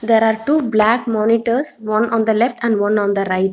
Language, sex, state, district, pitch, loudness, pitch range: English, female, Telangana, Hyderabad, 225 Hz, -16 LUFS, 215-235 Hz